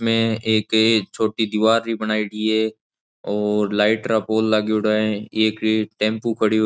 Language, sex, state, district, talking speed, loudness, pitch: Marwari, male, Rajasthan, Nagaur, 155 wpm, -20 LUFS, 110 Hz